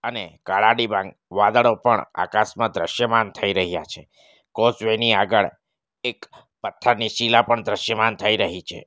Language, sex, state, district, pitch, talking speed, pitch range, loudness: Gujarati, male, Gujarat, Valsad, 110 Hz, 140 wpm, 105-115 Hz, -20 LUFS